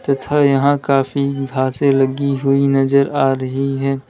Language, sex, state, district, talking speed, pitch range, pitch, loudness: Hindi, male, Uttar Pradesh, Lalitpur, 145 wpm, 135-140 Hz, 135 Hz, -16 LUFS